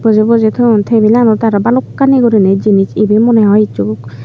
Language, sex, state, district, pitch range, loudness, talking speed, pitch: Chakma, female, Tripura, Unakoti, 205-230 Hz, -10 LUFS, 170 wpm, 215 Hz